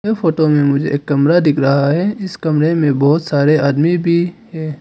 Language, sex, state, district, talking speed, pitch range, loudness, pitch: Hindi, male, Arunachal Pradesh, Papum Pare, 200 wpm, 145-170 Hz, -14 LUFS, 155 Hz